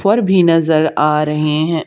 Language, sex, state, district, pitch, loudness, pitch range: Hindi, male, Haryana, Charkhi Dadri, 160 Hz, -14 LUFS, 150-170 Hz